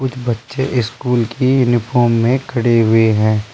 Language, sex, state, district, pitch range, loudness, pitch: Hindi, male, Uttar Pradesh, Saharanpur, 115-130 Hz, -15 LUFS, 120 Hz